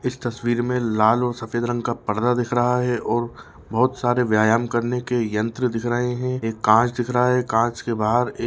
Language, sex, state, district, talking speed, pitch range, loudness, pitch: Hindi, male, Chhattisgarh, Raigarh, 220 wpm, 115-125 Hz, -21 LUFS, 120 Hz